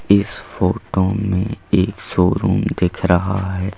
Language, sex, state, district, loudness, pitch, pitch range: Hindi, male, Madhya Pradesh, Bhopal, -18 LUFS, 95 Hz, 90-100 Hz